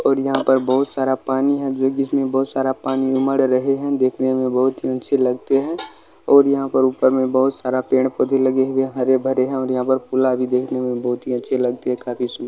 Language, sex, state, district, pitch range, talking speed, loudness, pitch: Hindi, male, Uttar Pradesh, Gorakhpur, 130-135 Hz, 245 wpm, -19 LUFS, 130 Hz